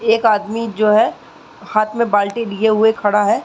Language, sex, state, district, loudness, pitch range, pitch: Hindi, female, Uttar Pradesh, Muzaffarnagar, -16 LUFS, 205-225 Hz, 215 Hz